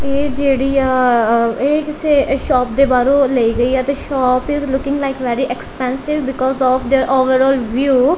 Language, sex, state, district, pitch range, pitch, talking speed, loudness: Punjabi, female, Punjab, Kapurthala, 255-275 Hz, 265 Hz, 185 wpm, -15 LUFS